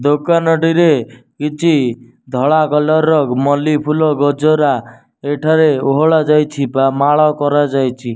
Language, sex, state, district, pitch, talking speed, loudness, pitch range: Odia, male, Odisha, Nuapada, 145 Hz, 110 wpm, -14 LUFS, 135-155 Hz